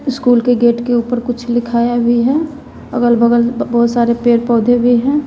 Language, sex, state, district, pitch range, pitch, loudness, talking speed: Hindi, female, Bihar, West Champaran, 235-245 Hz, 240 Hz, -13 LUFS, 195 wpm